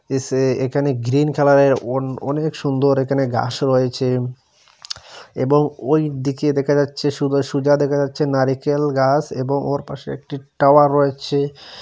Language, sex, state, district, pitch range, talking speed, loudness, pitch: Bengali, male, Assam, Hailakandi, 135-145 Hz, 130 wpm, -18 LUFS, 140 Hz